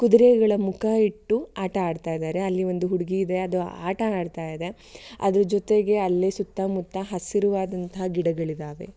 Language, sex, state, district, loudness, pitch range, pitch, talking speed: Kannada, female, Karnataka, Shimoga, -24 LUFS, 180-205 Hz, 190 Hz, 135 wpm